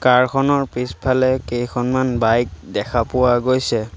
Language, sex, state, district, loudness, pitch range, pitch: Assamese, male, Assam, Sonitpur, -18 LUFS, 120-130 Hz, 125 Hz